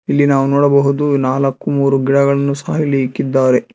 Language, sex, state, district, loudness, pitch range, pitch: Kannada, male, Karnataka, Bangalore, -14 LUFS, 135-140 Hz, 140 Hz